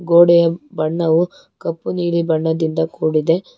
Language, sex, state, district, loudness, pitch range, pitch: Kannada, female, Karnataka, Bangalore, -17 LUFS, 160-170 Hz, 165 Hz